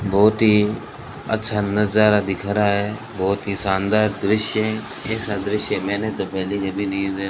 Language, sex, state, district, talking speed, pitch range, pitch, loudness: Hindi, male, Rajasthan, Bikaner, 175 wpm, 100-105 Hz, 105 Hz, -20 LUFS